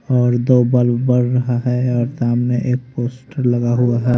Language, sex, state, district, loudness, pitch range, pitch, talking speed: Hindi, male, Haryana, Rohtak, -17 LUFS, 120-125 Hz, 125 Hz, 170 wpm